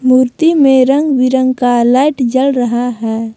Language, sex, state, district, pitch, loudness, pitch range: Hindi, female, Jharkhand, Palamu, 255 Hz, -11 LUFS, 245-270 Hz